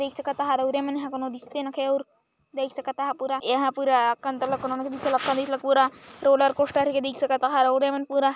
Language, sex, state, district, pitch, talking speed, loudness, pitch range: Hindi, female, Chhattisgarh, Jashpur, 270 Hz, 170 wpm, -25 LUFS, 265-275 Hz